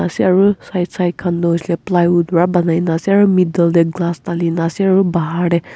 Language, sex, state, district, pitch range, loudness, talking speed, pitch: Nagamese, female, Nagaland, Kohima, 170-185 Hz, -15 LUFS, 210 wpm, 175 Hz